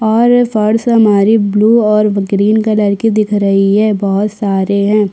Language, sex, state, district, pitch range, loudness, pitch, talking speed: Hindi, female, Chhattisgarh, Korba, 200-220 Hz, -11 LUFS, 210 Hz, 165 wpm